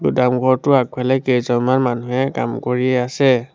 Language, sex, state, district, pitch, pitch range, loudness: Assamese, male, Assam, Sonitpur, 125 Hz, 125-130 Hz, -17 LUFS